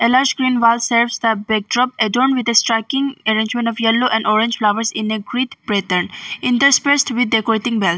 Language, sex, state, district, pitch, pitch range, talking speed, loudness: English, female, Arunachal Pradesh, Longding, 230 Hz, 220-250 Hz, 220 wpm, -16 LUFS